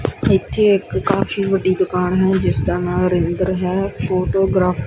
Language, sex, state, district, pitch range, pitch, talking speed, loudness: Punjabi, male, Punjab, Kapurthala, 180-190 Hz, 185 Hz, 150 wpm, -17 LUFS